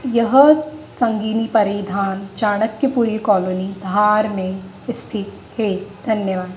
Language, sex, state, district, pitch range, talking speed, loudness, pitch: Hindi, female, Madhya Pradesh, Dhar, 195-235 Hz, 90 wpm, -18 LUFS, 210 Hz